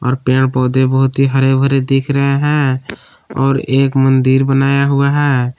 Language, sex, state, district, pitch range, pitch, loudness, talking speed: Hindi, male, Jharkhand, Palamu, 130-140 Hz, 135 Hz, -13 LUFS, 170 wpm